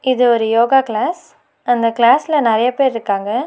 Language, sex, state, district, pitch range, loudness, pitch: Tamil, female, Tamil Nadu, Nilgiris, 230-265 Hz, -15 LUFS, 240 Hz